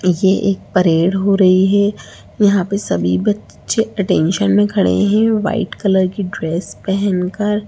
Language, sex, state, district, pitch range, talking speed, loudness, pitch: Hindi, female, Bihar, Samastipur, 185-205 Hz, 155 wpm, -15 LUFS, 195 Hz